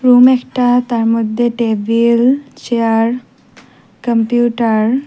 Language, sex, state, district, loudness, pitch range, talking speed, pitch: Bengali, female, Assam, Hailakandi, -13 LUFS, 230-250 Hz, 70 wpm, 235 Hz